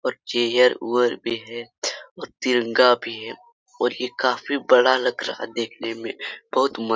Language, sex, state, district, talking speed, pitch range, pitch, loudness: Hindi, male, Jharkhand, Sahebganj, 165 wpm, 115-125 Hz, 120 Hz, -22 LUFS